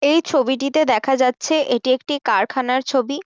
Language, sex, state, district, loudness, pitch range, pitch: Bengali, female, West Bengal, Jhargram, -18 LUFS, 255-295 Hz, 265 Hz